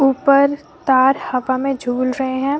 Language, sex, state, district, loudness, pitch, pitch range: Hindi, female, Jharkhand, Deoghar, -17 LUFS, 265 Hz, 260-280 Hz